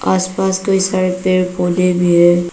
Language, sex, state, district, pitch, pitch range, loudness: Hindi, female, Arunachal Pradesh, Papum Pare, 185 Hz, 175-185 Hz, -14 LUFS